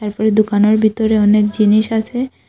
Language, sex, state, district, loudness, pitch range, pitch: Bengali, female, Assam, Hailakandi, -14 LUFS, 210-220 Hz, 215 Hz